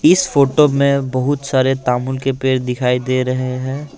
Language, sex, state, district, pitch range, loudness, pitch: Hindi, male, Assam, Kamrup Metropolitan, 130-140 Hz, -16 LUFS, 130 Hz